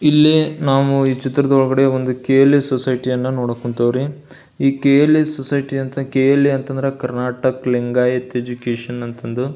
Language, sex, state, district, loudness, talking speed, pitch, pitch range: Kannada, male, Karnataka, Belgaum, -17 LUFS, 145 wpm, 135 Hz, 125-140 Hz